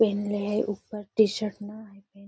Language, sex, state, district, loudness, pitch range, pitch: Magahi, female, Bihar, Gaya, -27 LUFS, 205-215 Hz, 205 Hz